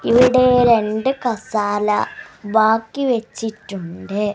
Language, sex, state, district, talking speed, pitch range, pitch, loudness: Malayalam, female, Kerala, Kasaragod, 70 wpm, 210-245 Hz, 220 Hz, -18 LUFS